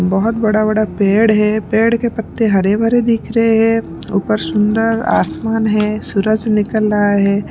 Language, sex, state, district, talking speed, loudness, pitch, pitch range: Hindi, female, Punjab, Pathankot, 170 wpm, -14 LUFS, 215 Hz, 205-225 Hz